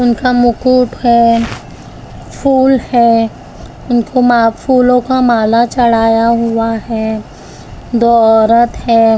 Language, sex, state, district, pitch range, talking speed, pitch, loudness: Hindi, female, Maharashtra, Mumbai Suburban, 225-245 Hz, 110 wpm, 235 Hz, -11 LUFS